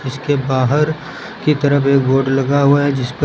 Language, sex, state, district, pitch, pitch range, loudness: Hindi, male, Uttar Pradesh, Lucknow, 140 Hz, 135-150 Hz, -15 LUFS